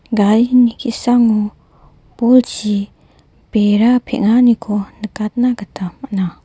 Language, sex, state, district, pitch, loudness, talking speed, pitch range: Garo, female, Meghalaya, West Garo Hills, 220 Hz, -15 LUFS, 65 wpm, 205-245 Hz